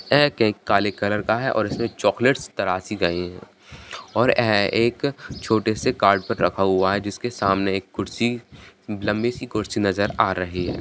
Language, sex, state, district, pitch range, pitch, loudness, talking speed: Hindi, male, Bihar, Kishanganj, 95-115 Hz, 100 Hz, -22 LUFS, 170 wpm